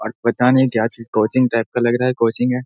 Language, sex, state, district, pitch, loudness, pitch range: Hindi, male, Bihar, Saharsa, 120 Hz, -17 LUFS, 115-125 Hz